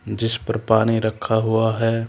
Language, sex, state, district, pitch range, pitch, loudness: Hindi, male, Haryana, Charkhi Dadri, 110-115 Hz, 110 Hz, -20 LUFS